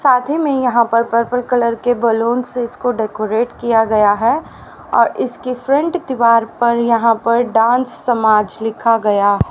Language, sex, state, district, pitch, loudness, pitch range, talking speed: Hindi, female, Haryana, Rohtak, 235 Hz, -15 LUFS, 225-245 Hz, 160 wpm